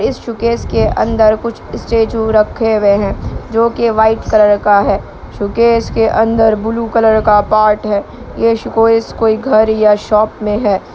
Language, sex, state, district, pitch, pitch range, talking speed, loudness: Hindi, male, Bihar, Kishanganj, 220 Hz, 210-225 Hz, 170 wpm, -12 LUFS